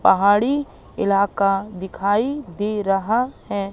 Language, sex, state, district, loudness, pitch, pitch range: Hindi, female, Madhya Pradesh, Katni, -20 LUFS, 205 Hz, 195-225 Hz